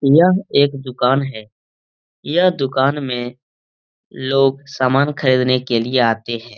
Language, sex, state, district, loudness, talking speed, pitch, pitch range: Hindi, male, Bihar, Lakhisarai, -17 LUFS, 130 wpm, 130 Hz, 115-140 Hz